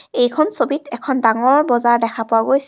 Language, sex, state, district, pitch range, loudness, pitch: Assamese, female, Assam, Kamrup Metropolitan, 230-280 Hz, -17 LUFS, 245 Hz